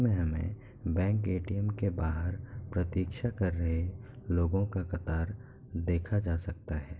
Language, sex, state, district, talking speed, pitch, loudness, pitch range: Hindi, male, Bihar, Kishanganj, 130 wpm, 95 Hz, -33 LUFS, 85-105 Hz